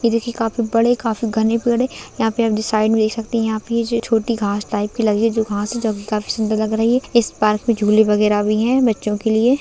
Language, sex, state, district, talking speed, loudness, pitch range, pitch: Hindi, female, Maharashtra, Chandrapur, 260 wpm, -18 LUFS, 215-230 Hz, 225 Hz